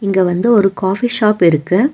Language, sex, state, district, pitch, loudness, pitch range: Tamil, female, Tamil Nadu, Nilgiris, 195 Hz, -13 LUFS, 185-220 Hz